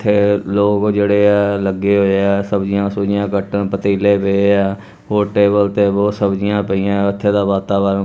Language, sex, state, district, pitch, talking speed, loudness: Punjabi, male, Punjab, Kapurthala, 100 Hz, 170 wpm, -15 LUFS